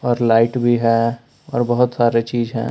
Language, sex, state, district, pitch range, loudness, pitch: Hindi, male, Jharkhand, Palamu, 115-120 Hz, -17 LUFS, 120 Hz